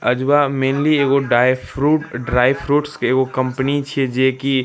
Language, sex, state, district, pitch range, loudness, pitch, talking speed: Maithili, male, Bihar, Darbhanga, 130-140 Hz, -17 LUFS, 135 Hz, 180 wpm